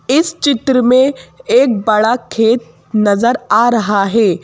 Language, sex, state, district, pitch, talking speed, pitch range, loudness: Hindi, female, Madhya Pradesh, Bhopal, 235 Hz, 135 wpm, 215-260 Hz, -13 LUFS